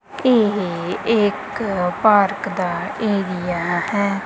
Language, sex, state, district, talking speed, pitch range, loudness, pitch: Punjabi, female, Punjab, Kapurthala, 85 wpm, 180-210 Hz, -19 LUFS, 200 Hz